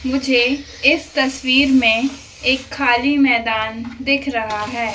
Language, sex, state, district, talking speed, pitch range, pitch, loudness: Hindi, female, Madhya Pradesh, Dhar, 120 wpm, 235-275 Hz, 260 Hz, -17 LUFS